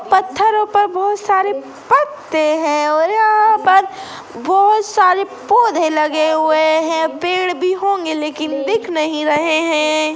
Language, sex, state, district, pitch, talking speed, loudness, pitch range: Hindi, female, Chhattisgarh, Sukma, 355 Hz, 135 wpm, -15 LUFS, 310-395 Hz